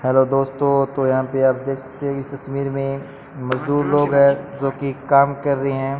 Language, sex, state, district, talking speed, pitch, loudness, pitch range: Hindi, male, Rajasthan, Bikaner, 210 wpm, 135 Hz, -19 LUFS, 135-140 Hz